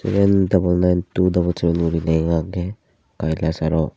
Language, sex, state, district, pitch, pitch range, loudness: Chakma, male, Tripura, Unakoti, 90 Hz, 80-90 Hz, -19 LUFS